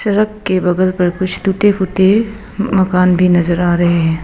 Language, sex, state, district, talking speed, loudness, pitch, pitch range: Hindi, female, Arunachal Pradesh, Papum Pare, 185 wpm, -13 LUFS, 185 Hz, 180-205 Hz